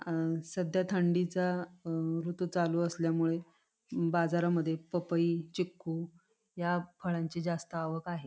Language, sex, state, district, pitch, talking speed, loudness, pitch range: Marathi, female, Maharashtra, Pune, 170 Hz, 110 wpm, -33 LUFS, 165-175 Hz